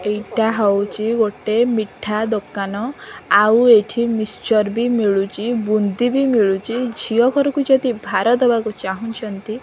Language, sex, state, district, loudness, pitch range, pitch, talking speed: Odia, female, Odisha, Khordha, -18 LUFS, 210-235 Hz, 220 Hz, 125 wpm